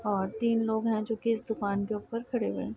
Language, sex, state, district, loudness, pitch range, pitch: Hindi, female, Bihar, Saharsa, -30 LUFS, 210-230 Hz, 220 Hz